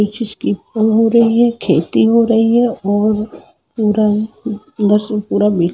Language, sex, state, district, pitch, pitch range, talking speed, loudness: Hindi, female, Jharkhand, Jamtara, 215 Hz, 210-230 Hz, 115 wpm, -14 LUFS